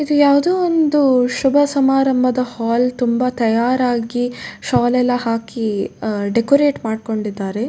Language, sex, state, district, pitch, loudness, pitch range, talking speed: Kannada, female, Karnataka, Dakshina Kannada, 245 Hz, -17 LUFS, 230-270 Hz, 100 wpm